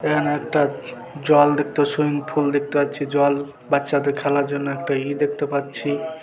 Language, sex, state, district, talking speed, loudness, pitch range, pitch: Bengali, male, West Bengal, Malda, 145 wpm, -21 LUFS, 140-145 Hz, 145 Hz